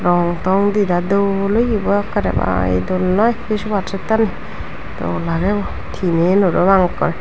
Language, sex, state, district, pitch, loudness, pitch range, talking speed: Chakma, female, Tripura, Dhalai, 190 Hz, -17 LUFS, 170-205 Hz, 160 wpm